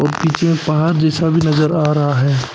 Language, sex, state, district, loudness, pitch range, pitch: Hindi, male, Arunachal Pradesh, Papum Pare, -15 LUFS, 145-160 Hz, 155 Hz